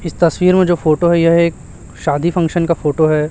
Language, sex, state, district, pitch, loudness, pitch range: Hindi, male, Chhattisgarh, Raipur, 170 Hz, -14 LUFS, 155-170 Hz